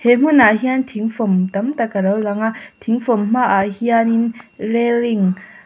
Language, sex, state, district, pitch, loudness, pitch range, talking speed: Mizo, female, Mizoram, Aizawl, 230 Hz, -17 LUFS, 205-240 Hz, 200 wpm